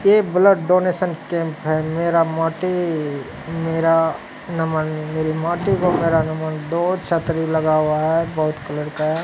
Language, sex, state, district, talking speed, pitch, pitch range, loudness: Hindi, male, Bihar, Katihar, 150 wpm, 165 Hz, 155-175 Hz, -20 LUFS